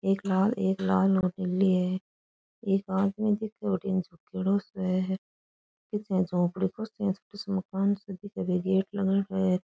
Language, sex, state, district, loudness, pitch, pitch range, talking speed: Rajasthani, female, Rajasthan, Churu, -29 LUFS, 195 Hz, 185-200 Hz, 170 wpm